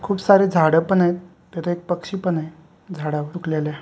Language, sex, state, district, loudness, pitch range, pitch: Marathi, male, Maharashtra, Sindhudurg, -20 LUFS, 160-180 Hz, 175 Hz